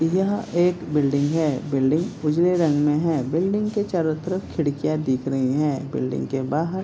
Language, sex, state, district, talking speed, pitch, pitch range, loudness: Hindi, male, Bihar, Vaishali, 185 wpm, 155 Hz, 140-175 Hz, -22 LUFS